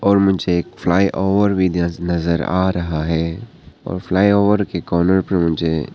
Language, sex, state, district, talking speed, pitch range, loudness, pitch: Hindi, male, Arunachal Pradesh, Papum Pare, 160 wpm, 85-95 Hz, -18 LUFS, 90 Hz